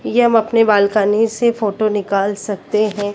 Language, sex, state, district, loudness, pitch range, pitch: Hindi, female, Maharashtra, Mumbai Suburban, -16 LUFS, 205-225 Hz, 210 Hz